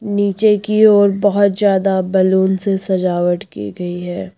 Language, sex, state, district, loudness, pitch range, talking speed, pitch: Hindi, female, Uttar Pradesh, Lucknow, -15 LUFS, 185-205 Hz, 150 wpm, 195 Hz